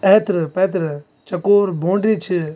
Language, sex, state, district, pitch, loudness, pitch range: Garhwali, male, Uttarakhand, Tehri Garhwal, 185 Hz, -18 LUFS, 165-200 Hz